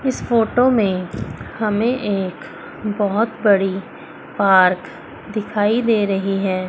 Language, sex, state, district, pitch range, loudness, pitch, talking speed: Hindi, female, Chandigarh, Chandigarh, 195-225 Hz, -18 LUFS, 205 Hz, 110 wpm